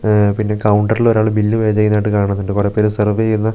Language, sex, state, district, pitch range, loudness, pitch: Malayalam, male, Kerala, Wayanad, 105-110 Hz, -15 LUFS, 105 Hz